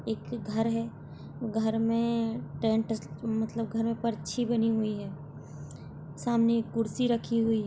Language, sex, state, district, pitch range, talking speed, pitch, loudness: Hindi, female, Maharashtra, Solapur, 215-230 Hz, 135 wpm, 225 Hz, -30 LUFS